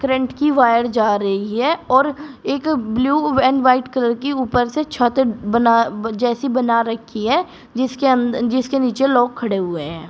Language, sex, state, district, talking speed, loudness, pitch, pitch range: Hindi, female, Uttar Pradesh, Shamli, 170 wpm, -18 LUFS, 245 Hz, 230-265 Hz